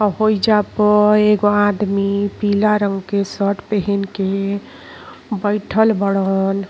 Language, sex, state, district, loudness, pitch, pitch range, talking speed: Bhojpuri, female, Uttar Pradesh, Gorakhpur, -17 LUFS, 205 Hz, 200-210 Hz, 105 wpm